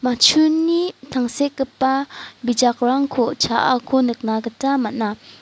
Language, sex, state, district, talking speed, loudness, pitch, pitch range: Garo, female, Meghalaya, West Garo Hills, 80 wpm, -19 LUFS, 255 Hz, 240-275 Hz